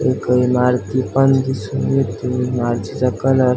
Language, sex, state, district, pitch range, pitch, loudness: Marathi, male, Maharashtra, Aurangabad, 125-130 Hz, 125 Hz, -17 LUFS